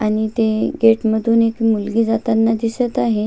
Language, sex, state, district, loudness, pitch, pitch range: Marathi, female, Maharashtra, Sindhudurg, -17 LUFS, 225 Hz, 220-230 Hz